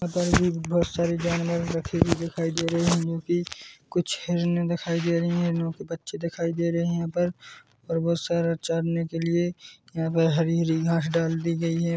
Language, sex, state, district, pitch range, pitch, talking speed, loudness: Hindi, male, Chhattisgarh, Korba, 165-170 Hz, 170 Hz, 205 wpm, -26 LUFS